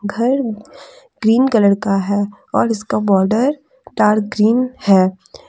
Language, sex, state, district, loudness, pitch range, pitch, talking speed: Hindi, female, Jharkhand, Deoghar, -16 LUFS, 200-250 Hz, 215 Hz, 120 wpm